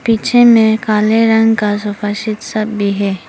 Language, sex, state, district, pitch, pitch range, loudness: Hindi, female, Arunachal Pradesh, Papum Pare, 215 Hz, 205-225 Hz, -13 LUFS